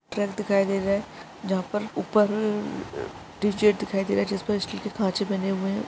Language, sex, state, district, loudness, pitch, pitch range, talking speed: Hindi, male, Jharkhand, Jamtara, -26 LUFS, 205 Hz, 195-210 Hz, 215 wpm